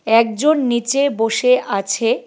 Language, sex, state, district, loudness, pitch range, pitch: Bengali, female, West Bengal, Cooch Behar, -16 LUFS, 225-260 Hz, 235 Hz